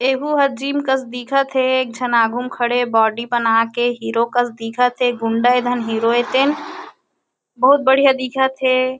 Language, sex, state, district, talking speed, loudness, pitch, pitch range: Chhattisgarhi, female, Chhattisgarh, Kabirdham, 200 wpm, -17 LUFS, 245 Hz, 240-265 Hz